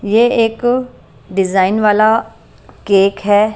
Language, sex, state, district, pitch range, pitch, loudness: Hindi, female, Himachal Pradesh, Shimla, 200-225 Hz, 215 Hz, -14 LUFS